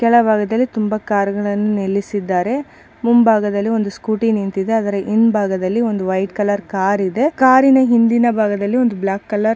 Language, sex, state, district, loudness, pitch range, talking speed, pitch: Kannada, female, Karnataka, Bijapur, -16 LUFS, 200-230 Hz, 140 wpm, 215 Hz